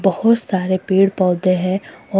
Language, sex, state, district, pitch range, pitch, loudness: Hindi, female, Himachal Pradesh, Shimla, 185-195 Hz, 190 Hz, -17 LUFS